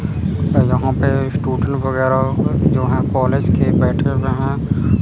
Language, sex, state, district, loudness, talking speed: Hindi, male, Chandigarh, Chandigarh, -17 LUFS, 130 wpm